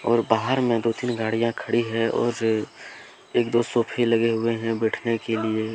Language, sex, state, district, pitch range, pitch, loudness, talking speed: Hindi, male, Jharkhand, Deoghar, 110-120 Hz, 115 Hz, -23 LUFS, 175 wpm